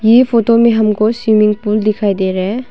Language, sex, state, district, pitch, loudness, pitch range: Hindi, female, Arunachal Pradesh, Longding, 215 Hz, -12 LUFS, 210-230 Hz